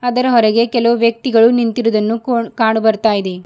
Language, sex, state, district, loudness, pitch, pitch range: Kannada, female, Karnataka, Bidar, -14 LUFS, 230 Hz, 220-235 Hz